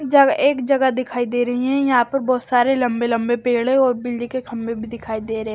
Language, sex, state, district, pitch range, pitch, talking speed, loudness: Hindi, male, Maharashtra, Washim, 235-260 Hz, 245 Hz, 250 wpm, -19 LUFS